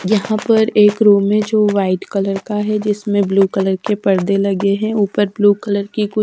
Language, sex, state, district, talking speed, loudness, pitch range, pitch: Hindi, female, Haryana, Rohtak, 210 wpm, -15 LUFS, 195-215 Hz, 205 Hz